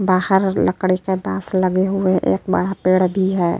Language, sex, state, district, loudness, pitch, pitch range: Hindi, female, Uttar Pradesh, Etah, -18 LUFS, 185 Hz, 185-190 Hz